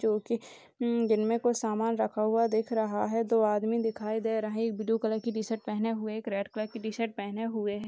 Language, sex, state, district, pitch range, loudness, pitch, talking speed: Hindi, female, Bihar, Sitamarhi, 215-230 Hz, -30 LUFS, 220 Hz, 235 wpm